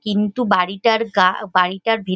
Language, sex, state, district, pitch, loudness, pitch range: Bengali, female, West Bengal, Paschim Medinipur, 205 Hz, -18 LUFS, 185-225 Hz